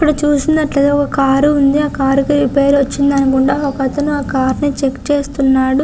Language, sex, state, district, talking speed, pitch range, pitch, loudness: Telugu, female, Andhra Pradesh, Visakhapatnam, 175 wpm, 270-290 Hz, 280 Hz, -14 LUFS